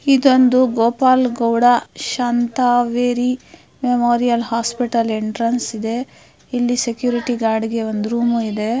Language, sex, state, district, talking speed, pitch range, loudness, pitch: Kannada, female, Karnataka, Mysore, 90 wpm, 230-245 Hz, -17 LUFS, 240 Hz